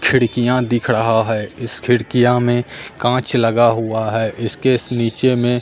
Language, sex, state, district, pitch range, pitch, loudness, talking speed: Hindi, male, Bihar, Katihar, 115-125 Hz, 120 Hz, -17 LUFS, 150 wpm